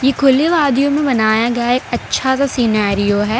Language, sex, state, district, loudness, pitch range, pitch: Hindi, female, Gujarat, Valsad, -15 LUFS, 220-275 Hz, 255 Hz